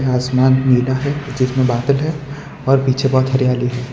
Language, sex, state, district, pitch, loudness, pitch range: Hindi, male, Gujarat, Valsad, 130 Hz, -16 LUFS, 130-135 Hz